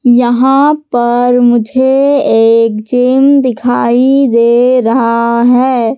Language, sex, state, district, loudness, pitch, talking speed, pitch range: Hindi, female, Madhya Pradesh, Katni, -9 LUFS, 245 Hz, 90 wpm, 235-260 Hz